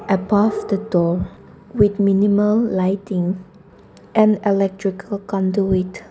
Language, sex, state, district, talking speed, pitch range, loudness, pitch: English, female, Nagaland, Dimapur, 90 wpm, 190-205 Hz, -19 LUFS, 195 Hz